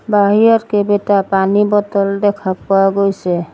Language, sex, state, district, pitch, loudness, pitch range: Assamese, female, Assam, Sonitpur, 200 Hz, -14 LUFS, 195-205 Hz